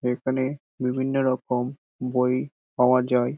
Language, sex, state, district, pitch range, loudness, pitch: Bengali, male, West Bengal, Dakshin Dinajpur, 125-130 Hz, -25 LUFS, 125 Hz